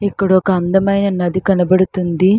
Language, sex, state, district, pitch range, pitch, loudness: Telugu, female, Andhra Pradesh, Srikakulam, 185-195 Hz, 185 Hz, -15 LUFS